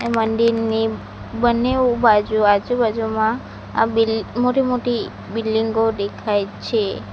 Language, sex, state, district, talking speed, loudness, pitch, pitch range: Gujarati, female, Gujarat, Valsad, 85 wpm, -19 LUFS, 225 Hz, 220-235 Hz